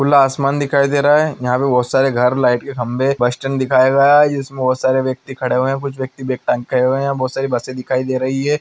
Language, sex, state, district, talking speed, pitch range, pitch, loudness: Hindi, male, Andhra Pradesh, Anantapur, 285 wpm, 130-140 Hz, 130 Hz, -16 LUFS